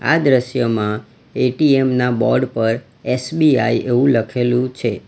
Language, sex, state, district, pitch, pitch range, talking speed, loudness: Gujarati, male, Gujarat, Valsad, 125 Hz, 115-130 Hz, 120 wpm, -17 LUFS